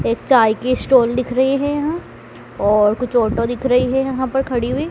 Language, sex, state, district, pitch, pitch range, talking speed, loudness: Hindi, female, Madhya Pradesh, Dhar, 250 Hz, 235-265 Hz, 220 wpm, -17 LUFS